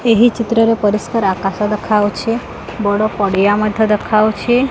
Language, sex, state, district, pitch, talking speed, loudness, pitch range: Odia, female, Odisha, Khordha, 215 Hz, 125 wpm, -15 LUFS, 205-230 Hz